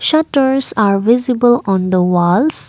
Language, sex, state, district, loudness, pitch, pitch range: English, female, Assam, Kamrup Metropolitan, -13 LUFS, 240 Hz, 190-270 Hz